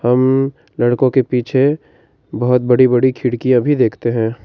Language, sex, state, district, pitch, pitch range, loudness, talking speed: Hindi, male, Karnataka, Bangalore, 125 Hz, 120-135 Hz, -15 LUFS, 150 wpm